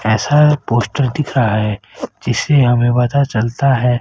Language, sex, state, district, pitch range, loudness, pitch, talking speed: Hindi, female, Haryana, Rohtak, 115-140 Hz, -15 LUFS, 125 Hz, 165 wpm